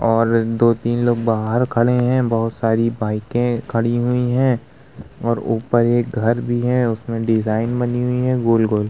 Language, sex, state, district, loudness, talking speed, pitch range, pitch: Hindi, male, Uttar Pradesh, Muzaffarnagar, -18 LUFS, 170 wpm, 115-120 Hz, 115 Hz